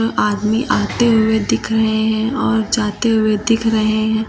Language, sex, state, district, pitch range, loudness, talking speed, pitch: Hindi, female, Uttar Pradesh, Lucknow, 215-225 Hz, -16 LUFS, 165 wpm, 220 Hz